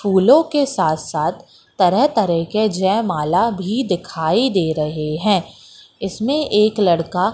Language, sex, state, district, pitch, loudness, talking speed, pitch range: Hindi, female, Madhya Pradesh, Katni, 190 Hz, -17 LUFS, 130 wpm, 170-220 Hz